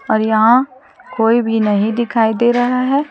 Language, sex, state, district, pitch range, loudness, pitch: Hindi, female, Chhattisgarh, Raipur, 220-250 Hz, -14 LUFS, 235 Hz